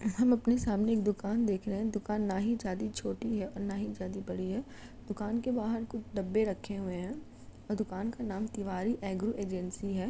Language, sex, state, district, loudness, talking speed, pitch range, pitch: Hindi, female, Uttar Pradesh, Jalaun, -34 LUFS, 215 wpm, 195-225 Hz, 210 Hz